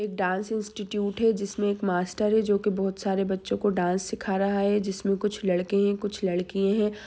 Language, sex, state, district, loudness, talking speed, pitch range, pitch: Hindi, female, Jharkhand, Sahebganj, -26 LUFS, 220 wpm, 195-210 Hz, 200 Hz